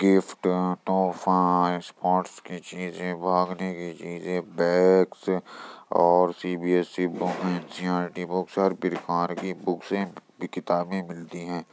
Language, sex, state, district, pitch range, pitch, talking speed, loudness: Hindi, male, Uttar Pradesh, Jyotiba Phule Nagar, 85-90 Hz, 90 Hz, 105 wpm, -26 LUFS